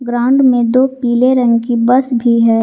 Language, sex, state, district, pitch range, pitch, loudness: Hindi, female, Jharkhand, Garhwa, 235-255 Hz, 245 Hz, -12 LUFS